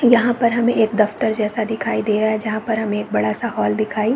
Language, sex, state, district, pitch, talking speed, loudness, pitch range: Hindi, female, Chhattisgarh, Balrampur, 215 Hz, 275 wpm, -19 LUFS, 210-230 Hz